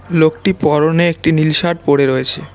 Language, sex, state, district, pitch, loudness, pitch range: Bengali, male, West Bengal, Cooch Behar, 155 Hz, -13 LUFS, 150-170 Hz